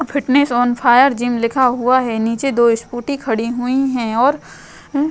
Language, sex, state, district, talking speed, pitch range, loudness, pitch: Hindi, female, Uttar Pradesh, Jyotiba Phule Nagar, 190 wpm, 235-275 Hz, -16 LUFS, 245 Hz